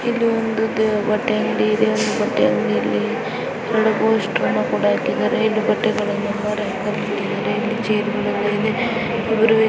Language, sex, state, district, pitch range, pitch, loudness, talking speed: Kannada, female, Karnataka, Dakshina Kannada, 210-225 Hz, 220 Hz, -19 LUFS, 95 wpm